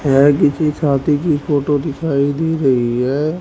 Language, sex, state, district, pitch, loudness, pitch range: Hindi, male, Haryana, Rohtak, 145 Hz, -16 LUFS, 140-155 Hz